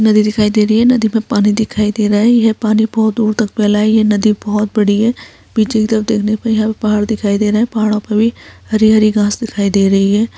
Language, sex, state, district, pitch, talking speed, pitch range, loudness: Hindi, female, Bihar, Saharsa, 215 Hz, 260 wpm, 210-220 Hz, -13 LUFS